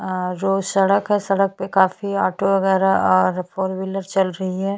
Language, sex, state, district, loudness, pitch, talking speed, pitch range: Hindi, female, Chhattisgarh, Bastar, -19 LUFS, 190 Hz, 175 wpm, 185-195 Hz